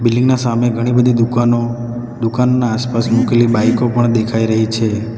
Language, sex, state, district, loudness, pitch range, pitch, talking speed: Gujarati, male, Gujarat, Valsad, -15 LUFS, 115-120 Hz, 120 Hz, 160 wpm